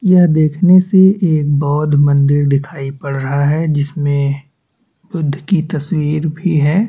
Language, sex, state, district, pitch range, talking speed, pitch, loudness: Hindi, male, Chhattisgarh, Bastar, 145-170 Hz, 150 wpm, 150 Hz, -14 LUFS